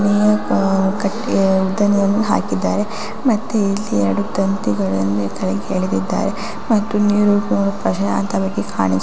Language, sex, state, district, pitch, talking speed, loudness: Kannada, female, Karnataka, Raichur, 195 Hz, 105 wpm, -18 LUFS